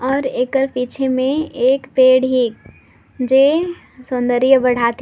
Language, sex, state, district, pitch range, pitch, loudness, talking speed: Sadri, female, Chhattisgarh, Jashpur, 250-270 Hz, 260 Hz, -16 LUFS, 120 wpm